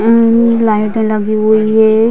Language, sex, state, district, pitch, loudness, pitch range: Hindi, female, Bihar, Vaishali, 220 Hz, -11 LUFS, 215-230 Hz